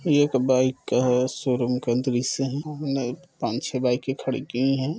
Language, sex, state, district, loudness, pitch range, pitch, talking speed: Hindi, male, Chhattisgarh, Rajnandgaon, -24 LUFS, 125-140 Hz, 130 Hz, 180 wpm